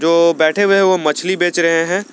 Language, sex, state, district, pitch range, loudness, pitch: Hindi, male, Jharkhand, Garhwa, 165-185 Hz, -14 LUFS, 175 Hz